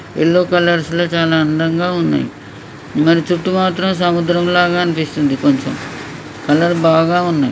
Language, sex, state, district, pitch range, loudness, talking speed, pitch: Telugu, male, Telangana, Karimnagar, 160-175 Hz, -15 LUFS, 130 wpm, 170 Hz